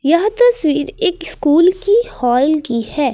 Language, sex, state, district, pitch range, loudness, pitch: Hindi, female, Jharkhand, Ranchi, 285-405 Hz, -15 LUFS, 315 Hz